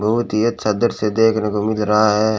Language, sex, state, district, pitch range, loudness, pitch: Hindi, male, Rajasthan, Bikaner, 105-115 Hz, -17 LUFS, 110 Hz